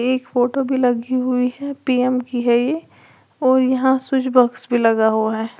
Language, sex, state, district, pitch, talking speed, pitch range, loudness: Hindi, female, Uttar Pradesh, Lalitpur, 250 Hz, 195 wpm, 245-260 Hz, -18 LUFS